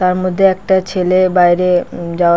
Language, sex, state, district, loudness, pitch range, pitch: Bengali, female, West Bengal, Paschim Medinipur, -13 LUFS, 175-185 Hz, 180 Hz